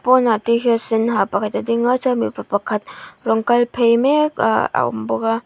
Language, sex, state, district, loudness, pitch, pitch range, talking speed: Mizo, female, Mizoram, Aizawl, -18 LUFS, 235 Hz, 225-245 Hz, 220 wpm